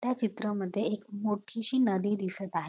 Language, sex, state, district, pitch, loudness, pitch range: Marathi, female, Maharashtra, Dhule, 210 Hz, -31 LUFS, 195-225 Hz